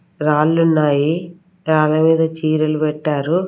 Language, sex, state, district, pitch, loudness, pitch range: Telugu, female, Andhra Pradesh, Sri Satya Sai, 155 Hz, -16 LUFS, 155-165 Hz